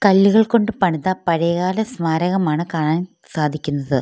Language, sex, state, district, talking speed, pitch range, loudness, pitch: Malayalam, female, Kerala, Kollam, 105 wpm, 155-190 Hz, -19 LUFS, 175 Hz